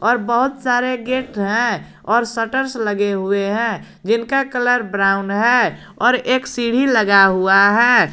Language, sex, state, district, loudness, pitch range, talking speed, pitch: Hindi, male, Jharkhand, Garhwa, -16 LUFS, 200-245 Hz, 150 wpm, 235 Hz